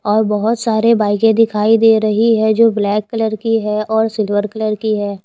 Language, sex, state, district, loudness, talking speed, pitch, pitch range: Hindi, female, Himachal Pradesh, Shimla, -14 LUFS, 205 wpm, 220 Hz, 210-225 Hz